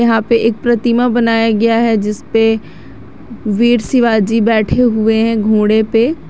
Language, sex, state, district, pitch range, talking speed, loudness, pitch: Hindi, female, Jharkhand, Garhwa, 215-235 Hz, 150 wpm, -13 LUFS, 225 Hz